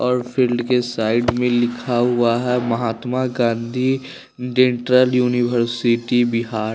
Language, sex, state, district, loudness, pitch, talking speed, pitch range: Hindi, male, Bihar, West Champaran, -19 LUFS, 120 Hz, 125 wpm, 120-125 Hz